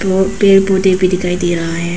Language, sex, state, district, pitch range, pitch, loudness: Hindi, female, Arunachal Pradesh, Papum Pare, 175-190 Hz, 185 Hz, -13 LUFS